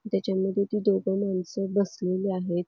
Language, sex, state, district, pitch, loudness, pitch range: Marathi, female, Karnataka, Belgaum, 195 Hz, -27 LUFS, 185-200 Hz